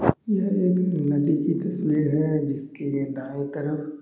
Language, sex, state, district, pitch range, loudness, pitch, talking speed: Hindi, male, Chhattisgarh, Bastar, 145-170 Hz, -24 LUFS, 150 Hz, 105 wpm